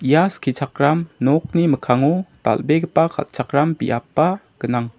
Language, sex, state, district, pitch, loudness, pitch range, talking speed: Garo, male, Meghalaya, South Garo Hills, 145 Hz, -19 LUFS, 130-165 Hz, 95 wpm